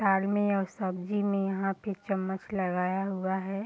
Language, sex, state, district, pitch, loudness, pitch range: Hindi, female, Bihar, Madhepura, 195 Hz, -30 LUFS, 190-200 Hz